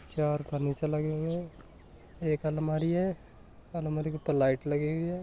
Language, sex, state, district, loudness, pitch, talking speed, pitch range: Hindi, male, Rajasthan, Nagaur, -31 LUFS, 155 Hz, 160 wpm, 150-165 Hz